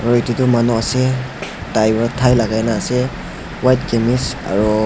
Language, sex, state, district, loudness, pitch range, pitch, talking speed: Nagamese, male, Nagaland, Dimapur, -17 LUFS, 110-125 Hz, 120 Hz, 160 wpm